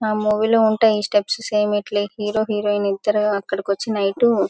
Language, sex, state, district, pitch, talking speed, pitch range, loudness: Telugu, female, Telangana, Karimnagar, 210 Hz, 185 wpm, 205-215 Hz, -19 LUFS